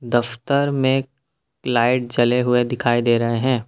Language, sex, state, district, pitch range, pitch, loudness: Hindi, male, Assam, Kamrup Metropolitan, 120-130 Hz, 125 Hz, -19 LUFS